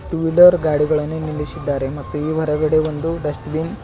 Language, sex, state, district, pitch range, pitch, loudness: Kannada, male, Karnataka, Bidar, 150-160 Hz, 155 Hz, -18 LUFS